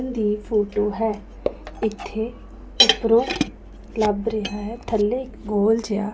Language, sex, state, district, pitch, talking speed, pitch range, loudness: Punjabi, female, Punjab, Pathankot, 220 Hz, 110 wpm, 210-225 Hz, -22 LUFS